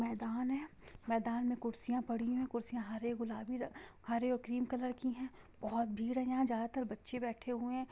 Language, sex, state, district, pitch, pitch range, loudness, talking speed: Hindi, female, Bihar, Sitamarhi, 240 Hz, 230-250 Hz, -39 LUFS, 205 wpm